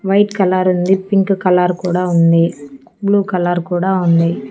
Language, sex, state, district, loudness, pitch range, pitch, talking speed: Telugu, female, Andhra Pradesh, Annamaya, -14 LUFS, 175-195 Hz, 180 Hz, 145 wpm